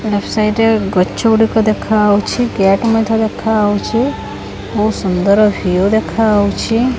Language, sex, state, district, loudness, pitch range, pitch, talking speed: Odia, female, Odisha, Khordha, -14 LUFS, 205-225 Hz, 215 Hz, 135 wpm